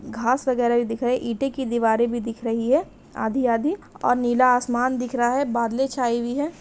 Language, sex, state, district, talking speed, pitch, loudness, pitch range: Hindi, female, Bihar, Saharsa, 200 wpm, 245 Hz, -22 LUFS, 235-260 Hz